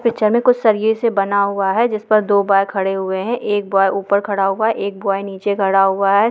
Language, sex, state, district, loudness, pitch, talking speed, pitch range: Hindi, female, Bihar, East Champaran, -16 LUFS, 200 Hz, 255 wpm, 195-215 Hz